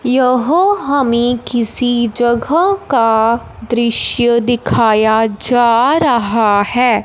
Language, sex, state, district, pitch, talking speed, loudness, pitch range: Hindi, female, Punjab, Fazilka, 240 Hz, 85 wpm, -13 LUFS, 230-255 Hz